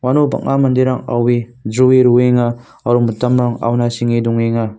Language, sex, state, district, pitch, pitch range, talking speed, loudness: Garo, male, Meghalaya, North Garo Hills, 120 Hz, 120-130 Hz, 140 wpm, -14 LUFS